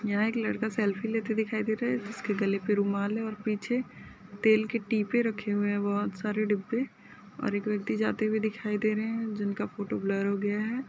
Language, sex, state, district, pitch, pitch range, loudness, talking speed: Hindi, female, Maharashtra, Solapur, 210 Hz, 205-220 Hz, -30 LUFS, 215 wpm